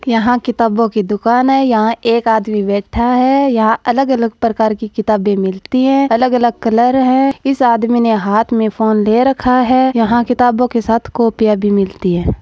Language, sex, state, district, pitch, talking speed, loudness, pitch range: Marwari, female, Rajasthan, Churu, 230 Hz, 185 wpm, -13 LUFS, 220-250 Hz